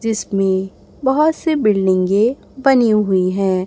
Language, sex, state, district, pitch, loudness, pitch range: Hindi, male, Chhattisgarh, Raipur, 210 Hz, -16 LUFS, 190-265 Hz